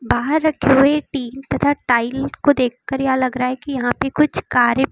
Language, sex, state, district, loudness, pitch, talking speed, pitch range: Hindi, female, Uttar Pradesh, Lucknow, -18 LUFS, 270 Hz, 220 wpm, 250-285 Hz